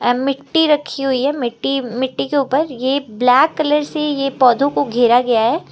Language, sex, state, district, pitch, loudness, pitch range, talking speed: Hindi, female, Uttar Pradesh, Lucknow, 275 Hz, -16 LUFS, 250-290 Hz, 200 wpm